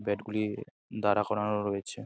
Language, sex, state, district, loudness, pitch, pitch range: Bengali, male, West Bengal, Jalpaiguri, -31 LUFS, 105 Hz, 100-105 Hz